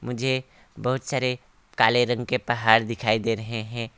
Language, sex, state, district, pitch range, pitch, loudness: Hindi, male, West Bengal, Alipurduar, 115-125 Hz, 120 Hz, -24 LUFS